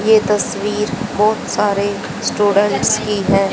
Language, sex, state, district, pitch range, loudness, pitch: Hindi, female, Haryana, Jhajjar, 200-210 Hz, -16 LUFS, 210 Hz